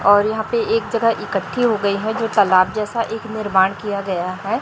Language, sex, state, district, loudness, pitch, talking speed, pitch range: Hindi, female, Chhattisgarh, Raipur, -19 LUFS, 215 Hz, 220 wpm, 200-225 Hz